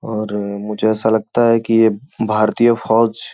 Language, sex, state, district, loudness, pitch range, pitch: Hindi, male, Uttar Pradesh, Gorakhpur, -16 LUFS, 110-115 Hz, 110 Hz